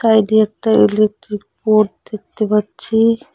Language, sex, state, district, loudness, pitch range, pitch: Bengali, female, West Bengal, Cooch Behar, -15 LUFS, 210-220 Hz, 215 Hz